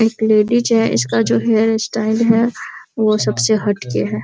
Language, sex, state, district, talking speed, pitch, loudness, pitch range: Hindi, female, Bihar, Araria, 185 wpm, 220 Hz, -16 LUFS, 200-225 Hz